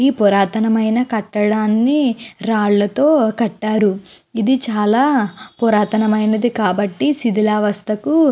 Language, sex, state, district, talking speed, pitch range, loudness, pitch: Telugu, female, Andhra Pradesh, Guntur, 95 wpm, 210-240 Hz, -16 LUFS, 220 Hz